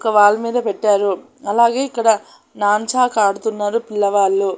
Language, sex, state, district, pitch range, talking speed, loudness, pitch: Telugu, female, Andhra Pradesh, Annamaya, 205-230 Hz, 120 wpm, -17 LUFS, 210 Hz